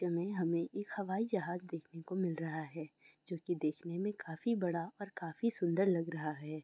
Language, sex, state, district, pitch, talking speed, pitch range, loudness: Hindi, female, Bihar, Kishanganj, 170 Hz, 190 wpm, 165-190 Hz, -38 LUFS